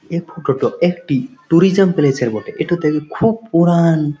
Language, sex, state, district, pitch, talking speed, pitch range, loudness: Bengali, male, West Bengal, Malda, 165 Hz, 155 wpm, 145-175 Hz, -16 LUFS